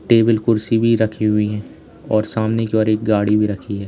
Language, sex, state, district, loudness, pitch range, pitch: Hindi, male, Uttar Pradesh, Lalitpur, -17 LUFS, 105-115 Hz, 110 Hz